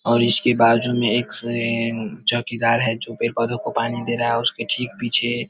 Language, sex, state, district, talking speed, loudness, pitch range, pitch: Hindi, male, Bihar, Vaishali, 220 wpm, -20 LUFS, 115-120 Hz, 120 Hz